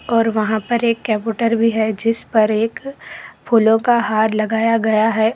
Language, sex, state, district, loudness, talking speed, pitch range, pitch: Hindi, female, Karnataka, Koppal, -17 LUFS, 180 wpm, 220-230 Hz, 225 Hz